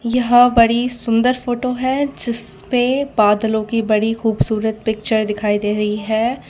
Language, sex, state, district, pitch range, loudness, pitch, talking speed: Hindi, female, Gujarat, Valsad, 220-245 Hz, -17 LUFS, 230 Hz, 140 wpm